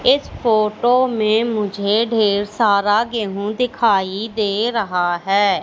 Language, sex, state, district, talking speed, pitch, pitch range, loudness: Hindi, female, Madhya Pradesh, Katni, 115 wpm, 215 Hz, 200-230 Hz, -18 LUFS